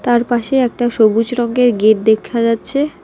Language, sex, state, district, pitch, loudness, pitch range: Bengali, female, West Bengal, Alipurduar, 240 Hz, -14 LUFS, 225-245 Hz